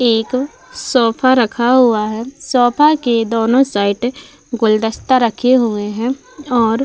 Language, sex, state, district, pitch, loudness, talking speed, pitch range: Hindi, female, Uttar Pradesh, Budaun, 245 Hz, -15 LUFS, 130 wpm, 225-255 Hz